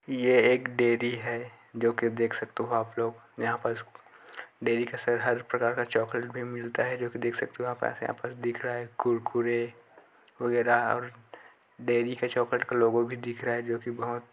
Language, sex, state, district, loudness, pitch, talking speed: Hindi, male, Chhattisgarh, Korba, -29 LUFS, 120 Hz, 205 wpm